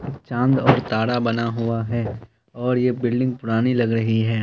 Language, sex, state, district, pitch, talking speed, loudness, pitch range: Hindi, male, Bihar, Kishanganj, 115 Hz, 175 wpm, -21 LUFS, 115-125 Hz